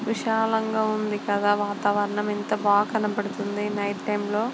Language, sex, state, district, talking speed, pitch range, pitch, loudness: Telugu, female, Andhra Pradesh, Guntur, 160 wpm, 205-215 Hz, 210 Hz, -25 LUFS